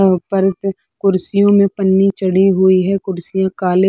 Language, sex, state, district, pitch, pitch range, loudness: Hindi, female, Chhattisgarh, Sarguja, 190 Hz, 185-195 Hz, -14 LUFS